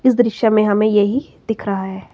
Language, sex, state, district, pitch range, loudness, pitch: Hindi, female, Himachal Pradesh, Shimla, 200-225 Hz, -17 LUFS, 215 Hz